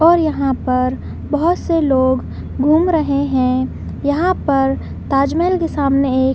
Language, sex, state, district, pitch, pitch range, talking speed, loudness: Hindi, female, Chhattisgarh, Bilaspur, 280 Hz, 265-325 Hz, 160 wpm, -16 LUFS